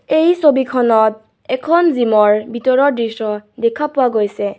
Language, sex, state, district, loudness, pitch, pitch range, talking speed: Assamese, female, Assam, Kamrup Metropolitan, -15 LUFS, 235 Hz, 215-280 Hz, 130 wpm